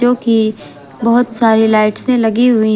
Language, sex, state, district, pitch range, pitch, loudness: Hindi, female, Jharkhand, Garhwa, 215-240 Hz, 225 Hz, -13 LUFS